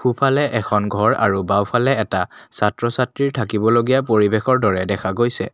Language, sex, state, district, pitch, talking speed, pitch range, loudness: Assamese, male, Assam, Kamrup Metropolitan, 110 Hz, 175 wpm, 105-125 Hz, -18 LUFS